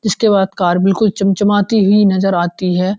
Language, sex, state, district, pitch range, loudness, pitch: Hindi, male, Uttarakhand, Uttarkashi, 185-205 Hz, -13 LUFS, 195 Hz